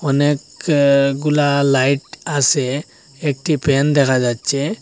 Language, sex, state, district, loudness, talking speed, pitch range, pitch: Bengali, male, Assam, Hailakandi, -17 LUFS, 110 wpm, 140-145 Hz, 140 Hz